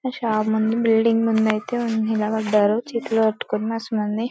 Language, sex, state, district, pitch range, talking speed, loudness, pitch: Telugu, female, Telangana, Karimnagar, 215-230 Hz, 125 wpm, -21 LUFS, 220 Hz